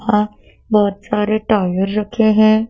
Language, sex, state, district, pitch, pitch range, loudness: Hindi, female, Madhya Pradesh, Dhar, 210 Hz, 210-215 Hz, -16 LUFS